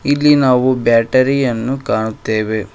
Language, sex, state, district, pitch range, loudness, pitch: Kannada, male, Karnataka, Koppal, 110-135 Hz, -14 LUFS, 125 Hz